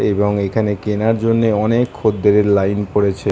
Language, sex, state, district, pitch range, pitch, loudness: Bengali, male, West Bengal, Kolkata, 105-110 Hz, 105 Hz, -16 LUFS